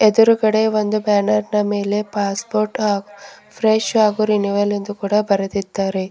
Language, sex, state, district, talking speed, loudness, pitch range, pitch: Kannada, female, Karnataka, Bidar, 125 wpm, -18 LUFS, 200-215 Hz, 210 Hz